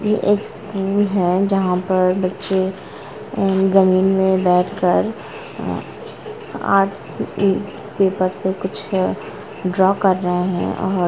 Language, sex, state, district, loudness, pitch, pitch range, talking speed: Hindi, female, Jharkhand, Sahebganj, -18 LUFS, 190 Hz, 185-195 Hz, 95 wpm